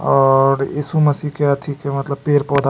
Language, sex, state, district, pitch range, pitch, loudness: Maithili, male, Bihar, Supaul, 135-150 Hz, 140 Hz, -17 LUFS